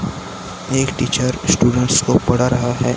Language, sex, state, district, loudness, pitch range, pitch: Hindi, male, Maharashtra, Gondia, -16 LUFS, 120-125 Hz, 125 Hz